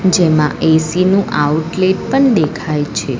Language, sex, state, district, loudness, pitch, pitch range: Gujarati, female, Gujarat, Valsad, -14 LUFS, 160 Hz, 150-185 Hz